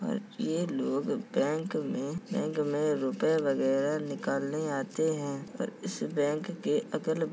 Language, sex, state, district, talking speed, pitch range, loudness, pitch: Hindi, male, Uttar Pradesh, Jalaun, 155 wpm, 140-170 Hz, -31 LUFS, 155 Hz